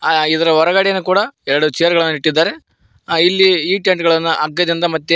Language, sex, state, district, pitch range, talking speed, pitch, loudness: Kannada, male, Karnataka, Koppal, 160-185 Hz, 160 wpm, 170 Hz, -14 LUFS